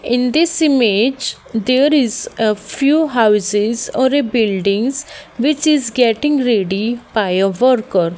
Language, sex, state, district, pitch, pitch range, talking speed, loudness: English, female, Haryana, Jhajjar, 245 Hz, 215-280 Hz, 130 wpm, -15 LUFS